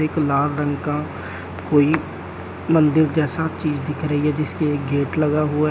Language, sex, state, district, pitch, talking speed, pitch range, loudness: Hindi, male, Uttar Pradesh, Shamli, 150 Hz, 180 wpm, 140-155 Hz, -20 LUFS